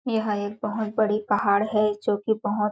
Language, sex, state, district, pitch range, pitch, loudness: Hindi, female, Chhattisgarh, Balrampur, 205-220 Hz, 210 Hz, -24 LUFS